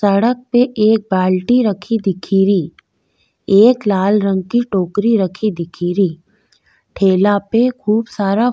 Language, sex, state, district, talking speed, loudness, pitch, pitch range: Rajasthani, female, Rajasthan, Nagaur, 125 wpm, -15 LUFS, 205 Hz, 190-230 Hz